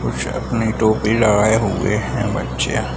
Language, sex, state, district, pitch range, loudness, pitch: Hindi, male, Bihar, Madhepura, 100-110 Hz, -18 LUFS, 110 Hz